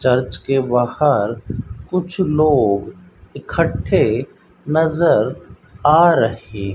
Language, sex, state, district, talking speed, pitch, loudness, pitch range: Hindi, male, Rajasthan, Bikaner, 90 wpm, 125 Hz, -17 LUFS, 105-155 Hz